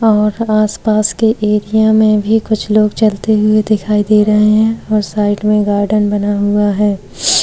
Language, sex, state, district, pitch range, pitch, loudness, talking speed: Hindi, female, Uttar Pradesh, Jyotiba Phule Nagar, 210-215 Hz, 210 Hz, -12 LUFS, 160 wpm